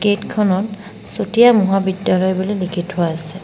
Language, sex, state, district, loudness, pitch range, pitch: Assamese, female, Assam, Sonitpur, -17 LUFS, 185-205 Hz, 195 Hz